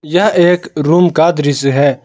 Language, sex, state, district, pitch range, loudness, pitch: Hindi, male, Jharkhand, Garhwa, 145-175 Hz, -11 LUFS, 155 Hz